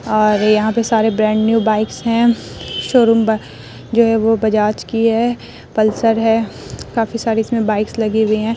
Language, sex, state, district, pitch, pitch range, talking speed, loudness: Hindi, female, Bihar, Vaishali, 225 Hz, 215-230 Hz, 170 wpm, -15 LUFS